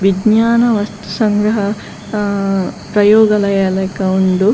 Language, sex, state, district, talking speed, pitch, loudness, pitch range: Tulu, female, Karnataka, Dakshina Kannada, 90 wpm, 205 Hz, -14 LUFS, 195-215 Hz